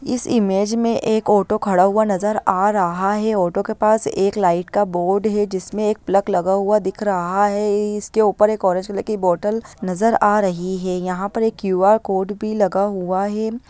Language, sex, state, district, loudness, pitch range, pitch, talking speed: Hindi, female, Bihar, Sitamarhi, -19 LUFS, 190-215 Hz, 205 Hz, 200 wpm